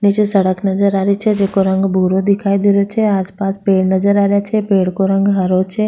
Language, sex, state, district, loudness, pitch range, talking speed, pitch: Rajasthani, female, Rajasthan, Nagaur, -14 LUFS, 190-200 Hz, 245 wpm, 195 Hz